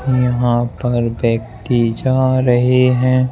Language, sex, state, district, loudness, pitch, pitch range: Hindi, male, Madhya Pradesh, Bhopal, -15 LUFS, 125 Hz, 120-130 Hz